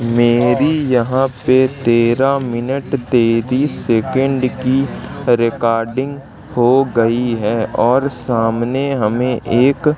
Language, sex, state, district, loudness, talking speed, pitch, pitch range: Hindi, male, Madhya Pradesh, Katni, -15 LUFS, 95 wpm, 125 Hz, 115-135 Hz